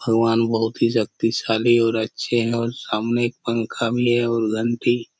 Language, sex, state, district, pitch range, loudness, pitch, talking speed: Hindi, male, Chhattisgarh, Korba, 115-120 Hz, -21 LUFS, 115 Hz, 185 wpm